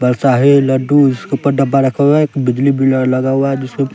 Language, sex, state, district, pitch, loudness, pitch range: Hindi, male, Bihar, West Champaran, 135 Hz, -13 LUFS, 130-140 Hz